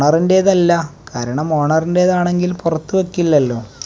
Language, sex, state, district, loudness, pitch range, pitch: Malayalam, male, Kerala, Kasaragod, -16 LUFS, 145-180 Hz, 165 Hz